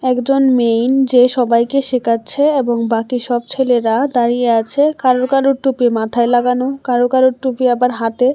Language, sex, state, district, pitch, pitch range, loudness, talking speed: Bengali, female, Tripura, West Tripura, 250 Hz, 240-265 Hz, -14 LUFS, 150 wpm